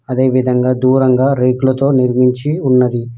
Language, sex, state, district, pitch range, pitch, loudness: Telugu, male, Telangana, Mahabubabad, 125-130 Hz, 130 Hz, -13 LUFS